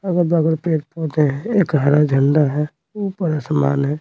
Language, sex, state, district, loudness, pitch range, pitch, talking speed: Hindi, male, Bihar, Patna, -18 LUFS, 145-170 Hz, 155 Hz, 180 wpm